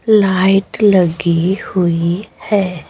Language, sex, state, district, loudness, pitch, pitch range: Hindi, female, Bihar, Patna, -14 LUFS, 185 Hz, 175-205 Hz